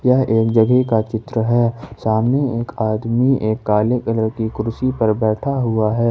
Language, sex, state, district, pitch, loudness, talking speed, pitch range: Hindi, male, Jharkhand, Ranchi, 115 Hz, -18 LUFS, 175 wpm, 110-125 Hz